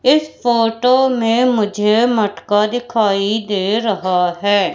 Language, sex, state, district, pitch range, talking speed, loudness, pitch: Hindi, female, Madhya Pradesh, Katni, 205-240 Hz, 115 wpm, -16 LUFS, 220 Hz